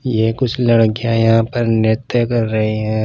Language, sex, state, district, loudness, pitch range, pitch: Hindi, male, Punjab, Pathankot, -16 LUFS, 110-120 Hz, 115 Hz